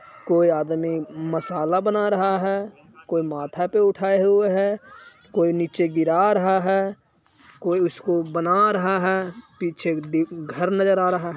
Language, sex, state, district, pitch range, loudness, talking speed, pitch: Hindi, male, Bihar, Jahanabad, 165-195 Hz, -22 LUFS, 155 wpm, 180 Hz